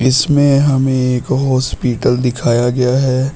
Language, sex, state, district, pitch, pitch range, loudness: Hindi, male, Uttar Pradesh, Shamli, 130 Hz, 125-135 Hz, -14 LUFS